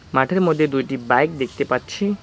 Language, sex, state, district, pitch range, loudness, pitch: Bengali, male, West Bengal, Cooch Behar, 130-170 Hz, -20 LUFS, 145 Hz